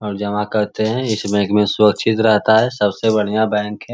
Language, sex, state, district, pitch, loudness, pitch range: Magahi, male, Bihar, Lakhisarai, 105 Hz, -16 LUFS, 105-110 Hz